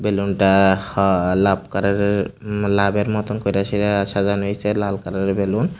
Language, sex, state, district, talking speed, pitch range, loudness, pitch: Bengali, male, Tripura, Unakoti, 185 wpm, 100-105 Hz, -19 LUFS, 100 Hz